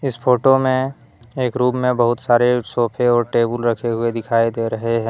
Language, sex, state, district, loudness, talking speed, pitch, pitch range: Hindi, male, Jharkhand, Deoghar, -18 LUFS, 190 wpm, 120 Hz, 115-125 Hz